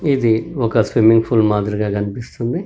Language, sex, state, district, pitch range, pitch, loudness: Telugu, male, Telangana, Karimnagar, 105-120 Hz, 115 Hz, -17 LUFS